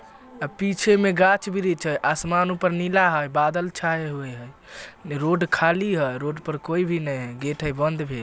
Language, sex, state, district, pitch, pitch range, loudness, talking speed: Magahi, male, Bihar, Samastipur, 165 Hz, 145-180 Hz, -23 LUFS, 205 wpm